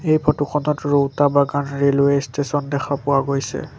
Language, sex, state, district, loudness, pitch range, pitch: Assamese, male, Assam, Sonitpur, -19 LUFS, 140-145 Hz, 145 Hz